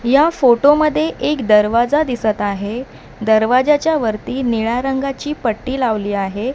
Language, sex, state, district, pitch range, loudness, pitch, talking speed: Marathi, female, Maharashtra, Mumbai Suburban, 220-285 Hz, -16 LUFS, 250 Hz, 130 wpm